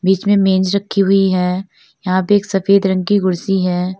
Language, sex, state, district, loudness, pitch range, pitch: Hindi, female, Uttar Pradesh, Lalitpur, -15 LUFS, 185-200 Hz, 190 Hz